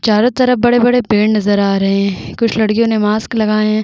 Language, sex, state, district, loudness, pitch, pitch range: Hindi, female, Chhattisgarh, Bastar, -13 LUFS, 215 Hz, 210-230 Hz